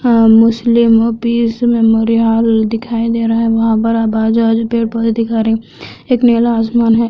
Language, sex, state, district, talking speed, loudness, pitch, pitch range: Hindi, female, Andhra Pradesh, Anantapur, 145 wpm, -12 LUFS, 230 Hz, 225-230 Hz